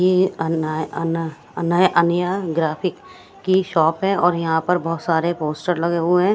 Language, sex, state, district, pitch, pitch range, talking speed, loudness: Hindi, female, Punjab, Kapurthala, 170 Hz, 165-185 Hz, 190 wpm, -20 LUFS